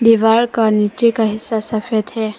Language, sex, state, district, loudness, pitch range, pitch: Hindi, female, Arunachal Pradesh, Papum Pare, -16 LUFS, 215-230 Hz, 220 Hz